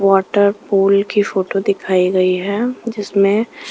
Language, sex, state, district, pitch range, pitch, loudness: Hindi, female, Punjab, Kapurthala, 195-205 Hz, 200 Hz, -16 LUFS